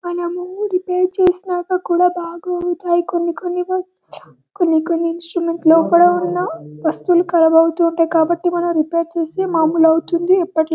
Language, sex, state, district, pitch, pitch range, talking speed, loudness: Telugu, male, Telangana, Karimnagar, 345 Hz, 330-360 Hz, 130 wpm, -17 LUFS